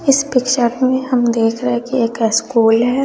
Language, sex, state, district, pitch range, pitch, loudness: Hindi, female, Bihar, West Champaran, 230-260 Hz, 245 Hz, -15 LUFS